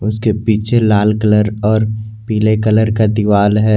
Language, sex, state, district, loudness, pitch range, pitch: Hindi, male, Jharkhand, Garhwa, -13 LUFS, 105-110 Hz, 110 Hz